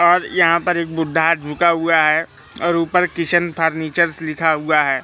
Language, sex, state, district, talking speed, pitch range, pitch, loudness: Hindi, male, Madhya Pradesh, Katni, 180 wpm, 160-170 Hz, 165 Hz, -17 LUFS